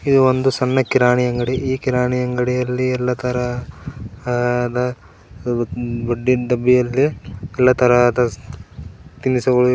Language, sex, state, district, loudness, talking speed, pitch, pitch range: Kannada, male, Karnataka, Koppal, -18 LUFS, 105 wpm, 125 Hz, 120-125 Hz